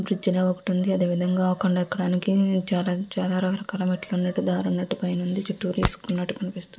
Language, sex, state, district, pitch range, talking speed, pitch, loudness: Telugu, female, Andhra Pradesh, Visakhapatnam, 180-190 Hz, 160 wpm, 185 Hz, -25 LUFS